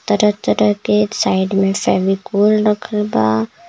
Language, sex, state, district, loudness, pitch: Bhojpuri, male, Jharkhand, Palamu, -16 LUFS, 195 Hz